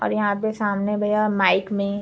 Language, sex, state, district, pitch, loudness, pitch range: Hindi, female, Uttar Pradesh, Varanasi, 205 Hz, -21 LUFS, 200-210 Hz